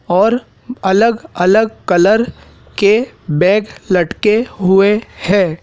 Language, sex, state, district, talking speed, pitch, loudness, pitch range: Hindi, male, Madhya Pradesh, Dhar, 95 wpm, 210 Hz, -14 LUFS, 190-225 Hz